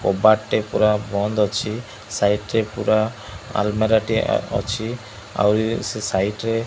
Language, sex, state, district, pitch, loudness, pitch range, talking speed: Odia, male, Odisha, Malkangiri, 105 Hz, -21 LUFS, 105-110 Hz, 160 wpm